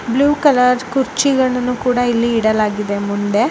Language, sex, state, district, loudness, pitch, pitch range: Kannada, male, Karnataka, Bellary, -15 LUFS, 250 Hz, 215-260 Hz